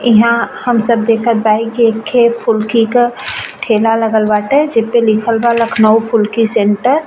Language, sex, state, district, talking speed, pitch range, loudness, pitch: Bhojpuri, female, Uttar Pradesh, Ghazipur, 170 wpm, 220-235 Hz, -12 LUFS, 230 Hz